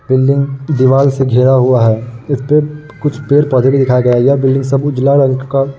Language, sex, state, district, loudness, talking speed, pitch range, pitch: Hindi, male, Uttar Pradesh, Muzaffarnagar, -12 LUFS, 185 wpm, 130-140 Hz, 135 Hz